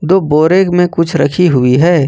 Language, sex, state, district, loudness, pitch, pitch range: Hindi, male, Jharkhand, Ranchi, -11 LUFS, 170 Hz, 155-180 Hz